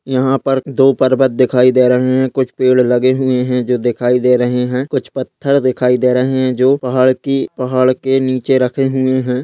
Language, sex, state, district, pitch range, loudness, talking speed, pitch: Hindi, male, Uttarakhand, Uttarkashi, 125-130 Hz, -14 LUFS, 195 wpm, 130 Hz